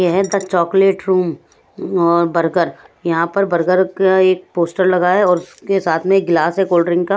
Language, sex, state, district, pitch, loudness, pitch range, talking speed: Hindi, female, Punjab, Pathankot, 180 Hz, -15 LUFS, 170-190 Hz, 200 wpm